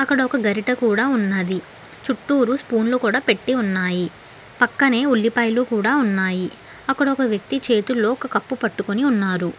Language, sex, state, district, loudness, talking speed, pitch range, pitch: Telugu, female, Telangana, Hyderabad, -20 LUFS, 135 wpm, 205-260 Hz, 235 Hz